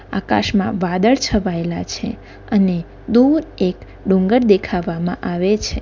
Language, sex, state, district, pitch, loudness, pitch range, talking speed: Gujarati, female, Gujarat, Valsad, 195 Hz, -18 LUFS, 180-220 Hz, 115 wpm